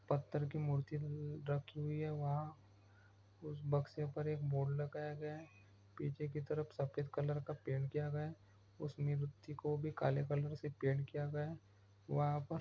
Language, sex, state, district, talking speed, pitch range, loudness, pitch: Hindi, male, Bihar, Araria, 180 wpm, 140-150 Hz, -42 LUFS, 145 Hz